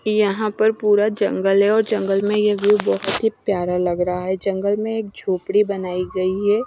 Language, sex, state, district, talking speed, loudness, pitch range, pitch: Hindi, female, Punjab, Kapurthala, 215 wpm, -19 LUFS, 190-210 Hz, 205 Hz